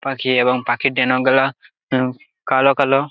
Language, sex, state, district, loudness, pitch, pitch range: Bengali, male, West Bengal, Jalpaiguri, -17 LUFS, 130 Hz, 130-135 Hz